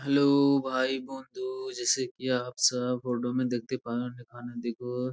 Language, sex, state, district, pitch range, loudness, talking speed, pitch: Bengali, male, West Bengal, Purulia, 125-140 Hz, -29 LUFS, 150 wpm, 125 Hz